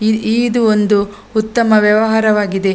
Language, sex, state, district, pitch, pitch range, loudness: Kannada, female, Karnataka, Dakshina Kannada, 215 Hz, 210-220 Hz, -13 LUFS